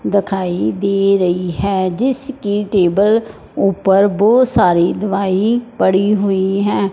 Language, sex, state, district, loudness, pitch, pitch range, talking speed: Hindi, male, Punjab, Fazilka, -15 LUFS, 200 Hz, 190-210 Hz, 115 wpm